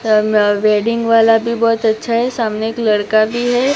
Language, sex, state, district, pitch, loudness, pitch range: Hindi, female, Gujarat, Gandhinagar, 225 Hz, -14 LUFS, 215-230 Hz